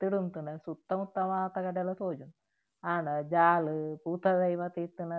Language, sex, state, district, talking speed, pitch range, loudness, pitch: Tulu, female, Karnataka, Dakshina Kannada, 160 wpm, 160-185 Hz, -32 LUFS, 175 Hz